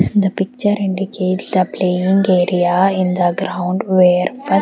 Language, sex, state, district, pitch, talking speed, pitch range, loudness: English, female, Haryana, Rohtak, 185 Hz, 155 wpm, 180-195 Hz, -16 LUFS